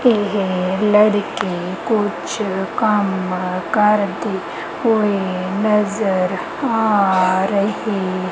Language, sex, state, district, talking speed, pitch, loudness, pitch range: Punjabi, female, Punjab, Kapurthala, 70 wpm, 200 Hz, -18 LUFS, 185-210 Hz